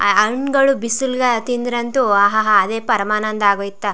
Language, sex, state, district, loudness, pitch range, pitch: Kannada, female, Karnataka, Chamarajanagar, -16 LUFS, 205-250 Hz, 225 Hz